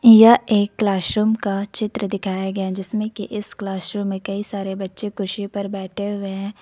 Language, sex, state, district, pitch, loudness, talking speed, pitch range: Hindi, female, Jharkhand, Ranchi, 200 Hz, -21 LUFS, 180 wpm, 195-210 Hz